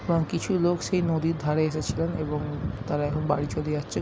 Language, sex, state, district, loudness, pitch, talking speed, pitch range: Bengali, male, West Bengal, Jhargram, -27 LUFS, 155 Hz, 195 wpm, 150-170 Hz